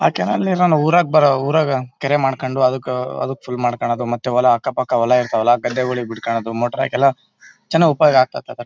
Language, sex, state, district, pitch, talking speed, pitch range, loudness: Kannada, male, Karnataka, Bellary, 130 Hz, 175 wpm, 120-145 Hz, -17 LUFS